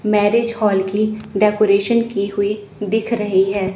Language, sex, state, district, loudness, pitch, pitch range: Hindi, female, Chandigarh, Chandigarh, -18 LUFS, 210 Hz, 200-215 Hz